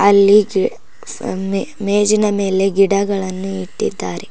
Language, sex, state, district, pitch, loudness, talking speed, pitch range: Kannada, female, Karnataka, Koppal, 200 Hz, -16 LUFS, 85 wpm, 195-205 Hz